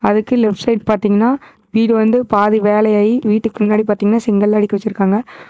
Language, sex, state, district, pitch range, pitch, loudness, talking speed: Tamil, female, Tamil Nadu, Namakkal, 210-225 Hz, 215 Hz, -14 LUFS, 155 wpm